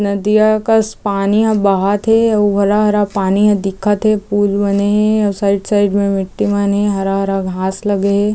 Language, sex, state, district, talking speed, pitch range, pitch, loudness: Chhattisgarhi, female, Chhattisgarh, Jashpur, 180 wpm, 200-210 Hz, 205 Hz, -14 LUFS